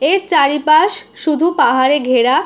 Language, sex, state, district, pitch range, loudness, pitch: Bengali, female, West Bengal, Jhargram, 260-340 Hz, -13 LUFS, 300 Hz